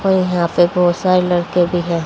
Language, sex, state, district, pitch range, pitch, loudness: Hindi, female, Haryana, Rohtak, 175-180 Hz, 175 Hz, -15 LUFS